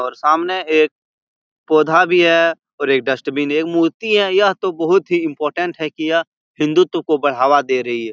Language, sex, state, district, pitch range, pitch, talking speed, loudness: Hindi, male, Bihar, Jahanabad, 145-185 Hz, 155 Hz, 190 wpm, -16 LUFS